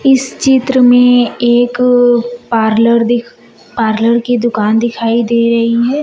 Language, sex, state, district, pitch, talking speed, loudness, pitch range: Hindi, female, Uttar Pradesh, Shamli, 240 Hz, 130 wpm, -11 LUFS, 230-245 Hz